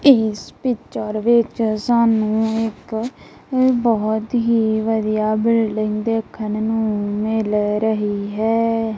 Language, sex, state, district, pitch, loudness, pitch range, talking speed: Punjabi, female, Punjab, Kapurthala, 220 Hz, -19 LUFS, 215-230 Hz, 95 wpm